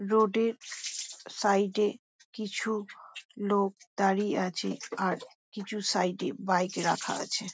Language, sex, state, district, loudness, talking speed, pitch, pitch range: Bengali, female, West Bengal, Jhargram, -30 LUFS, 120 wpm, 205 Hz, 195-220 Hz